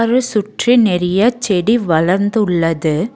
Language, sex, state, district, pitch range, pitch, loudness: Tamil, female, Tamil Nadu, Nilgiris, 175-230 Hz, 205 Hz, -14 LUFS